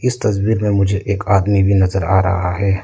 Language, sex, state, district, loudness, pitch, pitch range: Hindi, male, Arunachal Pradesh, Lower Dibang Valley, -16 LUFS, 100 Hz, 95-105 Hz